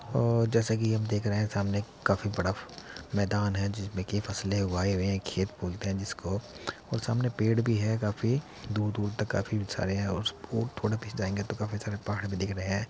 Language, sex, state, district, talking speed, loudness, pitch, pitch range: Hindi, male, Uttar Pradesh, Muzaffarnagar, 215 wpm, -31 LUFS, 105 Hz, 100-110 Hz